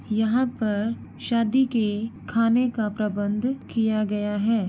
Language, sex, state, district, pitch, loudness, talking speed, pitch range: Hindi, female, Uttar Pradesh, Ghazipur, 220 Hz, -24 LUFS, 130 wpm, 210-235 Hz